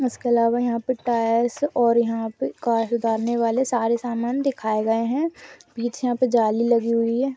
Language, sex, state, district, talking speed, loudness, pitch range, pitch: Hindi, female, Rajasthan, Nagaur, 165 wpm, -22 LUFS, 230-245 Hz, 235 Hz